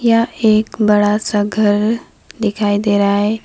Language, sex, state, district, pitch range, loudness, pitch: Hindi, female, West Bengal, Alipurduar, 205-220 Hz, -15 LUFS, 210 Hz